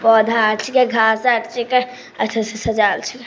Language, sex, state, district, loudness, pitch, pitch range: Maithili, female, Bihar, Samastipur, -17 LUFS, 225 Hz, 220-250 Hz